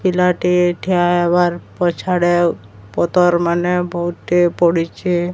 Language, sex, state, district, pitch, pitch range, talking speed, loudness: Odia, male, Odisha, Sambalpur, 175 Hz, 170-180 Hz, 80 wpm, -16 LUFS